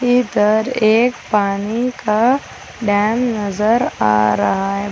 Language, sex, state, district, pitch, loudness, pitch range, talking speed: Hindi, female, Chhattisgarh, Raigarh, 215 Hz, -16 LUFS, 200-240 Hz, 110 wpm